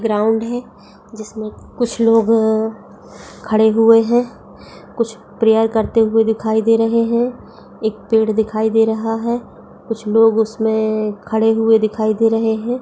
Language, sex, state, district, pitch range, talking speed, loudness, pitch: Hindi, female, Bihar, East Champaran, 220-225 Hz, 145 wpm, -16 LUFS, 225 Hz